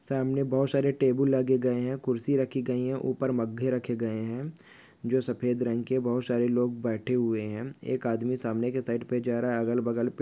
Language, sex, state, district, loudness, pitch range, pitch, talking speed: Hindi, male, Maharashtra, Pune, -28 LUFS, 120-130 Hz, 125 Hz, 215 wpm